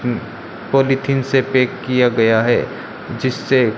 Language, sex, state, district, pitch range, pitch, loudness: Hindi, male, Rajasthan, Bikaner, 120-135 Hz, 125 Hz, -17 LUFS